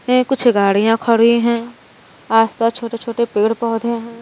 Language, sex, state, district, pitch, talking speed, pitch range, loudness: Hindi, female, Uttar Pradesh, Varanasi, 230 Hz, 170 wpm, 225-235 Hz, -16 LUFS